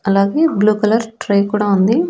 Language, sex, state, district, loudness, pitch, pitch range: Telugu, female, Andhra Pradesh, Annamaya, -15 LUFS, 210 Hz, 200-230 Hz